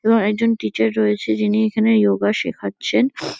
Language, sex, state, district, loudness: Bengali, female, West Bengal, Kolkata, -18 LUFS